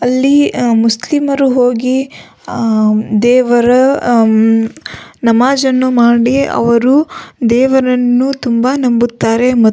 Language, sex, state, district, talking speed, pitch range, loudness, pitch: Kannada, female, Karnataka, Belgaum, 75 wpm, 235-260 Hz, -11 LUFS, 245 Hz